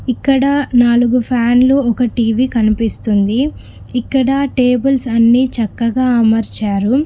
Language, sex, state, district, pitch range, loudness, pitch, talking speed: Telugu, female, Telangana, Mahabubabad, 230-260 Hz, -14 LUFS, 245 Hz, 95 wpm